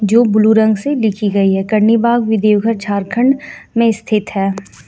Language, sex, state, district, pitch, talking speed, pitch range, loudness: Hindi, female, Jharkhand, Deoghar, 215 Hz, 170 wpm, 200-230 Hz, -14 LUFS